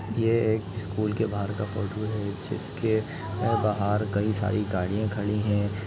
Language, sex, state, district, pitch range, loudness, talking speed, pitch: Hindi, male, Chhattisgarh, Rajnandgaon, 100-110 Hz, -27 LUFS, 165 wpm, 105 Hz